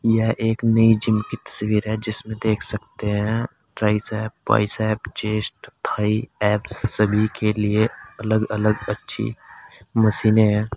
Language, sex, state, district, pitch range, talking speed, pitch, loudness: Hindi, male, Uttar Pradesh, Saharanpur, 105-110 Hz, 135 wpm, 110 Hz, -21 LUFS